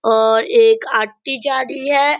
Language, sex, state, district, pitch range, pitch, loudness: Hindi, female, Bihar, Purnia, 225-290 Hz, 275 Hz, -15 LUFS